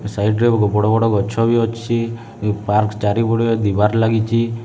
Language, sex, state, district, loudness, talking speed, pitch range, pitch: Odia, male, Odisha, Khordha, -17 LUFS, 170 wpm, 105-115 Hz, 115 Hz